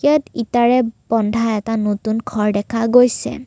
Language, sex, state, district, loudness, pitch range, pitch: Assamese, female, Assam, Kamrup Metropolitan, -17 LUFS, 220-245 Hz, 230 Hz